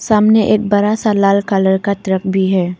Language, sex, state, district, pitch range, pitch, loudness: Hindi, female, Arunachal Pradesh, Papum Pare, 190-210 Hz, 200 Hz, -14 LUFS